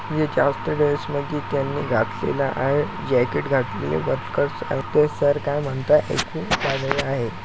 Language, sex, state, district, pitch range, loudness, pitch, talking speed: Marathi, male, Maharashtra, Chandrapur, 130-150 Hz, -22 LUFS, 140 Hz, 120 wpm